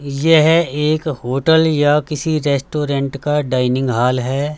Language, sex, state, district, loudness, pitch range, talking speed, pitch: Hindi, male, Haryana, Rohtak, -16 LUFS, 135-155 Hz, 130 wpm, 145 Hz